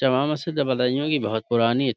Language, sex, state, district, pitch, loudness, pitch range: Urdu, male, Uttar Pradesh, Budaun, 130 Hz, -23 LUFS, 120-145 Hz